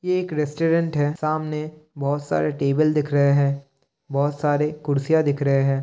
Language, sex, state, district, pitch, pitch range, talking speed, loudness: Hindi, male, Bihar, Kishanganj, 145 Hz, 140-155 Hz, 175 wpm, -22 LUFS